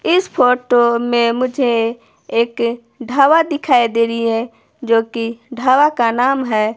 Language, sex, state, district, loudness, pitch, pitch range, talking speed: Hindi, female, Himachal Pradesh, Shimla, -15 LUFS, 240 Hz, 230-255 Hz, 140 wpm